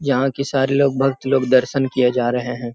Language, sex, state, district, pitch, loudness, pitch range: Hindi, male, Bihar, Jamui, 130 Hz, -18 LUFS, 125-135 Hz